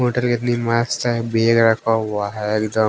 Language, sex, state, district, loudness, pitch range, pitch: Hindi, male, Haryana, Jhajjar, -19 LUFS, 110-120 Hz, 115 Hz